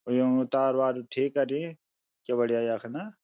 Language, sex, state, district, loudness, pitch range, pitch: Garhwali, male, Uttarakhand, Uttarkashi, -28 LUFS, 120-140 Hz, 130 Hz